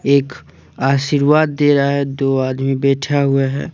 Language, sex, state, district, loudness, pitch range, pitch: Hindi, male, Jharkhand, Deoghar, -16 LUFS, 135-145 Hz, 140 Hz